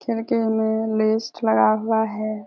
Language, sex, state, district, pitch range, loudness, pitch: Hindi, female, Bihar, Kishanganj, 215-225 Hz, -21 LUFS, 220 Hz